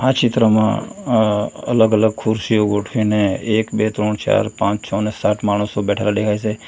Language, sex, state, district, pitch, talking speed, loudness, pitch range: Gujarati, male, Gujarat, Valsad, 110 Hz, 160 wpm, -18 LUFS, 105-110 Hz